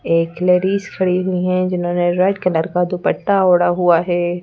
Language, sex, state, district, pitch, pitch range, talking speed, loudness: Hindi, female, Madhya Pradesh, Bhopal, 180 Hz, 175-185 Hz, 175 wpm, -16 LUFS